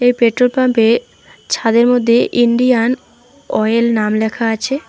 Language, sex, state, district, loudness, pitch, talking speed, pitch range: Bengali, female, West Bengal, Alipurduar, -14 LUFS, 240 Hz, 110 wpm, 225-250 Hz